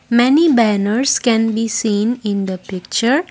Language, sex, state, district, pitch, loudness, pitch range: English, female, Assam, Kamrup Metropolitan, 225 Hz, -16 LUFS, 205-250 Hz